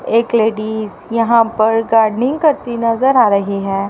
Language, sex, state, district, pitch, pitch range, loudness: Hindi, female, Haryana, Rohtak, 225 Hz, 215-235 Hz, -14 LUFS